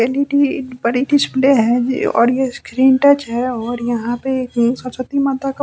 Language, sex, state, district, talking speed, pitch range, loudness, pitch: Hindi, male, Bihar, West Champaran, 150 wpm, 240-275 Hz, -16 LUFS, 255 Hz